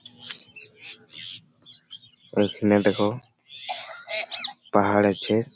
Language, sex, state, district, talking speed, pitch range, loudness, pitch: Bengali, male, West Bengal, Malda, 55 wpm, 105-135 Hz, -24 LUFS, 105 Hz